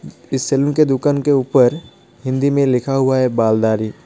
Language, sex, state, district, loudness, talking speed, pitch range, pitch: Hindi, male, West Bengal, Alipurduar, -16 LUFS, 190 wpm, 125-140 Hz, 135 Hz